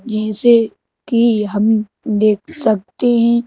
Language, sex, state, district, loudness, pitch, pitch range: Hindi, male, Madhya Pradesh, Bhopal, -15 LUFS, 220 Hz, 210-235 Hz